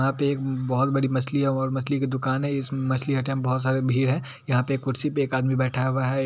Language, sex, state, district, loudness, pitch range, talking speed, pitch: Hindi, male, Bihar, Purnia, -24 LUFS, 130-135 Hz, 285 wpm, 135 Hz